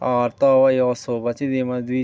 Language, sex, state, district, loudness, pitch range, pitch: Garhwali, male, Uttarakhand, Tehri Garhwal, -19 LUFS, 120-130 Hz, 125 Hz